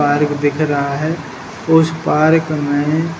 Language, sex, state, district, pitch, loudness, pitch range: Hindi, male, Bihar, Jahanabad, 150 Hz, -16 LUFS, 145-160 Hz